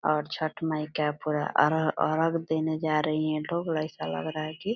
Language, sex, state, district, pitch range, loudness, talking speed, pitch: Hindi, female, Bihar, Purnia, 150-160 Hz, -28 LUFS, 215 wpm, 155 Hz